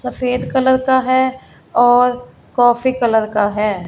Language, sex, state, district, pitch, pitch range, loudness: Hindi, female, Punjab, Fazilka, 250 Hz, 230-260 Hz, -15 LUFS